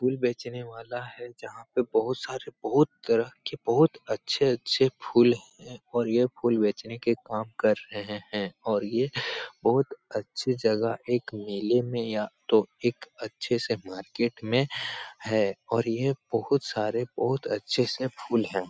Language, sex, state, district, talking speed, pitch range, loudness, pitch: Hindi, male, Bihar, Supaul, 160 wpm, 110-125 Hz, -28 LUFS, 120 Hz